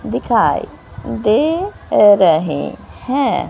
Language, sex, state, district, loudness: Hindi, female, Haryana, Rohtak, -15 LUFS